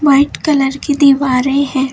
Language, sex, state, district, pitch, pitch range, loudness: Hindi, female, Uttar Pradesh, Lucknow, 275 Hz, 270-285 Hz, -13 LUFS